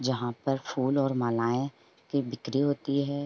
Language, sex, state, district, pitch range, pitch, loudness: Hindi, female, Uttar Pradesh, Varanasi, 120-140 Hz, 135 Hz, -29 LUFS